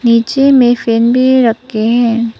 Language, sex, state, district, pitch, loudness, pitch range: Hindi, female, Arunachal Pradesh, Papum Pare, 235 Hz, -10 LUFS, 230-250 Hz